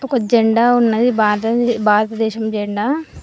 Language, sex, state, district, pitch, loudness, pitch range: Telugu, female, Telangana, Mahabubabad, 225 Hz, -16 LUFS, 215-240 Hz